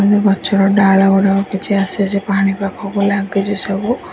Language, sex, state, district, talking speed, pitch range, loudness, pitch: Odia, female, Odisha, Nuapada, 130 wpm, 195-200 Hz, -15 LUFS, 195 Hz